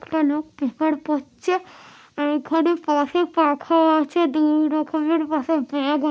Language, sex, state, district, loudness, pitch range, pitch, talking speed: Bengali, female, West Bengal, North 24 Parganas, -21 LUFS, 295-325 Hz, 310 Hz, 120 wpm